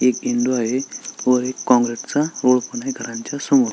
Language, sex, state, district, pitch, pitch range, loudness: Marathi, male, Maharashtra, Sindhudurg, 125 Hz, 125-145 Hz, -20 LUFS